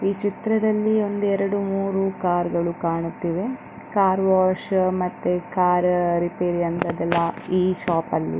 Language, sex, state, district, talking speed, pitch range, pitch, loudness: Kannada, female, Karnataka, Dakshina Kannada, 120 wpm, 175-195 Hz, 185 Hz, -22 LUFS